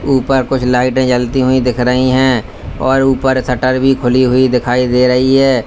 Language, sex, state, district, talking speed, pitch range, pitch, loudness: Hindi, male, Uttar Pradesh, Lalitpur, 190 wpm, 125-130 Hz, 130 Hz, -12 LUFS